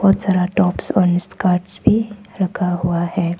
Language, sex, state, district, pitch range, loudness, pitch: Hindi, female, Arunachal Pradesh, Papum Pare, 175-195 Hz, -18 LUFS, 185 Hz